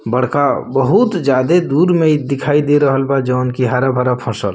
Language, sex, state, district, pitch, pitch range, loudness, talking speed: Bhojpuri, male, Bihar, Muzaffarpur, 135 Hz, 125-145 Hz, -14 LUFS, 185 wpm